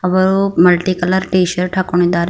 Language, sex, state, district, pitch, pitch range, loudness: Kannada, female, Karnataka, Bidar, 185 Hz, 175-185 Hz, -14 LUFS